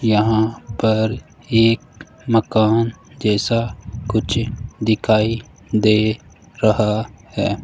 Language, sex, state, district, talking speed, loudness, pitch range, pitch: Hindi, male, Rajasthan, Jaipur, 80 wpm, -19 LUFS, 110-115 Hz, 110 Hz